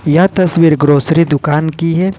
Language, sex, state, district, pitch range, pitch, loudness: Hindi, male, Jharkhand, Ranchi, 150-175 Hz, 165 Hz, -11 LUFS